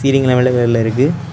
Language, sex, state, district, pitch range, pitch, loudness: Tamil, male, Tamil Nadu, Kanyakumari, 120-135 Hz, 125 Hz, -14 LUFS